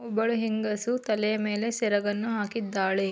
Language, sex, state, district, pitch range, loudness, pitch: Kannada, female, Karnataka, Mysore, 205-225 Hz, -28 LUFS, 215 Hz